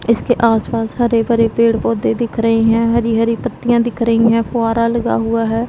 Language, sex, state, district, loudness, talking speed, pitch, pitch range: Hindi, female, Punjab, Pathankot, -15 LUFS, 200 wpm, 230 Hz, 225-235 Hz